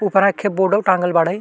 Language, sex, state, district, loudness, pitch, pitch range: Bhojpuri, male, Uttar Pradesh, Deoria, -17 LUFS, 195 Hz, 180-205 Hz